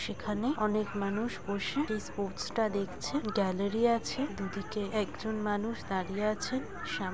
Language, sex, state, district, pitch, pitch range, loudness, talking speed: Bengali, female, West Bengal, Kolkata, 210 Hz, 200-225 Hz, -33 LUFS, 145 wpm